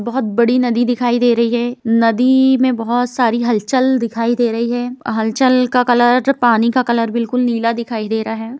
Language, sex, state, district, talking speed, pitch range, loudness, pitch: Hindi, female, Bihar, Jamui, 200 wpm, 230-250 Hz, -15 LUFS, 240 Hz